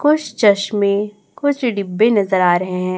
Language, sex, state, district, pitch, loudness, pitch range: Hindi, male, Chhattisgarh, Raipur, 205 Hz, -16 LUFS, 190-235 Hz